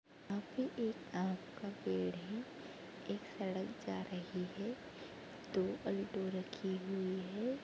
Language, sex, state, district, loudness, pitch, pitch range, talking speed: Hindi, female, Chhattisgarh, Sarguja, -43 LUFS, 190 Hz, 185-220 Hz, 135 wpm